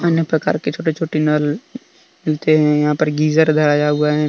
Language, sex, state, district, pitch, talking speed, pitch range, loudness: Hindi, male, Jharkhand, Deoghar, 155 Hz, 165 wpm, 150-160 Hz, -16 LUFS